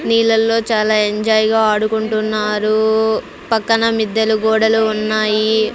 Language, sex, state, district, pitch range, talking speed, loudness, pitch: Telugu, female, Andhra Pradesh, Sri Satya Sai, 215-220 Hz, 95 wpm, -15 LUFS, 220 Hz